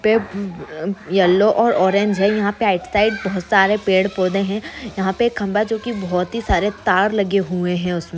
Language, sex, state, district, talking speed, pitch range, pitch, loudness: Hindi, female, Bihar, Bhagalpur, 220 wpm, 185-210 Hz, 200 Hz, -18 LUFS